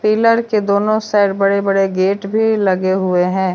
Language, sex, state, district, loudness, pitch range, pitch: Hindi, female, Jharkhand, Deoghar, -15 LUFS, 190-215 Hz, 200 Hz